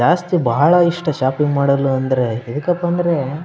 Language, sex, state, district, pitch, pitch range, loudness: Kannada, male, Karnataka, Bellary, 145 Hz, 130-175 Hz, -17 LUFS